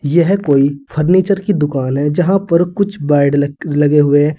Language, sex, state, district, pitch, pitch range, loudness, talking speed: Hindi, male, Uttar Pradesh, Saharanpur, 150 Hz, 145-180 Hz, -14 LUFS, 165 wpm